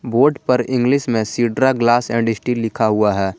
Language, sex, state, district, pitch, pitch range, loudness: Hindi, male, Jharkhand, Garhwa, 120 Hz, 110-125 Hz, -17 LUFS